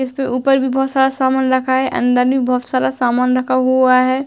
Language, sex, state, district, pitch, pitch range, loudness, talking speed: Hindi, female, Uttar Pradesh, Hamirpur, 260 Hz, 255-265 Hz, -15 LUFS, 225 wpm